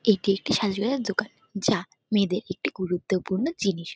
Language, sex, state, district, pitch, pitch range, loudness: Bengali, female, West Bengal, North 24 Parganas, 200 Hz, 190-220 Hz, -26 LUFS